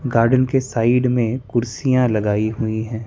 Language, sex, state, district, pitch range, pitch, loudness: Hindi, male, Chandigarh, Chandigarh, 110-130 Hz, 120 Hz, -19 LUFS